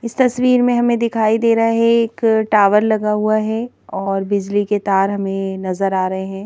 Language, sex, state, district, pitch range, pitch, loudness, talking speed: Hindi, female, Madhya Pradesh, Bhopal, 195-230 Hz, 215 Hz, -16 LUFS, 195 wpm